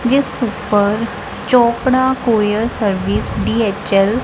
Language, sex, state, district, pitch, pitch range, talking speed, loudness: Punjabi, female, Punjab, Kapurthala, 230 Hz, 210-250 Hz, 100 wpm, -16 LUFS